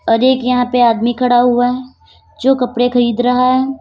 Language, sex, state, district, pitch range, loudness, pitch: Hindi, female, Uttar Pradesh, Lalitpur, 245-255 Hz, -13 LUFS, 245 Hz